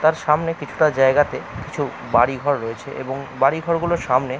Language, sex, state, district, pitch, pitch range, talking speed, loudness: Bengali, male, West Bengal, Jalpaiguri, 140 Hz, 130-155 Hz, 150 wpm, -20 LUFS